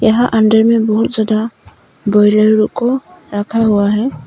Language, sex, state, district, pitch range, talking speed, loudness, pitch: Hindi, female, Arunachal Pradesh, Papum Pare, 210-230 Hz, 125 wpm, -13 LUFS, 220 Hz